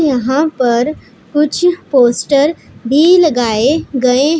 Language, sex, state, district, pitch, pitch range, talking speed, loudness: Hindi, female, Punjab, Pathankot, 280 Hz, 245-310 Hz, 95 wpm, -12 LUFS